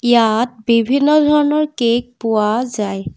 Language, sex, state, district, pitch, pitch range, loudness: Assamese, female, Assam, Kamrup Metropolitan, 240 Hz, 220-275 Hz, -15 LUFS